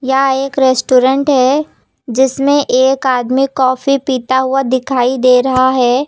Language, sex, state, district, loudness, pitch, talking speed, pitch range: Hindi, female, Uttar Pradesh, Lucknow, -12 LUFS, 260 Hz, 140 wpm, 255-270 Hz